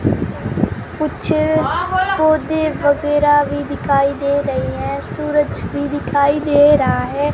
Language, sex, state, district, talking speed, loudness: Hindi, female, Rajasthan, Jaisalmer, 115 wpm, -17 LUFS